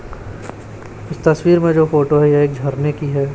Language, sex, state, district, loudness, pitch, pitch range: Hindi, male, Chhattisgarh, Raipur, -15 LUFS, 145 Hz, 120-150 Hz